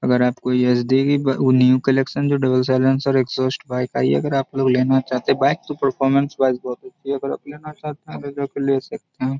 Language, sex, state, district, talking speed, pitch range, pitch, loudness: Hindi, male, Bihar, Araria, 235 wpm, 130-140 Hz, 135 Hz, -19 LUFS